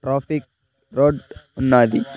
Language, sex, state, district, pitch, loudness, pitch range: Telugu, male, Andhra Pradesh, Sri Satya Sai, 135 Hz, -19 LUFS, 125-140 Hz